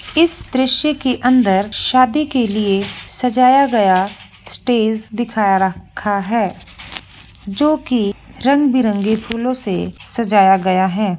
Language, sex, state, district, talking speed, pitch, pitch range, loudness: Hindi, female, Bihar, Begusarai, 115 wpm, 225 Hz, 200-255 Hz, -16 LUFS